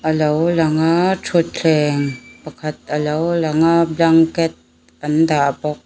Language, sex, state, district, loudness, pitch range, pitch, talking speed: Mizo, female, Mizoram, Aizawl, -17 LUFS, 150-165 Hz, 155 Hz, 125 wpm